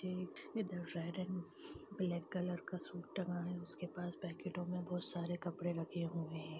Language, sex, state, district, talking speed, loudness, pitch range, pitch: Hindi, female, Chhattisgarh, Raigarh, 180 wpm, -44 LUFS, 170-180 Hz, 175 Hz